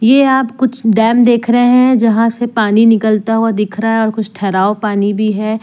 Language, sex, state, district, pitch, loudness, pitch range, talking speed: Hindi, female, Jharkhand, Deoghar, 225 Hz, -12 LUFS, 215-240 Hz, 225 wpm